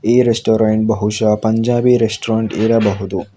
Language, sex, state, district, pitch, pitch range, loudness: Kannada, male, Karnataka, Bangalore, 110 Hz, 105-115 Hz, -15 LUFS